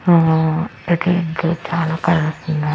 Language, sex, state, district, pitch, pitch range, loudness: Telugu, female, Andhra Pradesh, Annamaya, 165 Hz, 160-170 Hz, -18 LUFS